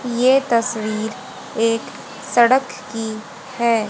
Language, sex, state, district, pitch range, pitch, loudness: Hindi, female, Haryana, Jhajjar, 220-255 Hz, 230 Hz, -19 LUFS